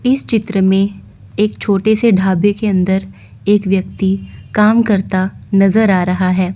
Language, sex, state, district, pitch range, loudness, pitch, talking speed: Hindi, female, Chandigarh, Chandigarh, 190-210 Hz, -14 LUFS, 195 Hz, 155 wpm